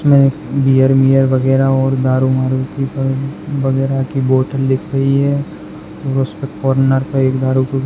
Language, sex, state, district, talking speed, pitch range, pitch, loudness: Hindi, male, Maharashtra, Pune, 170 wpm, 130-135 Hz, 135 Hz, -15 LUFS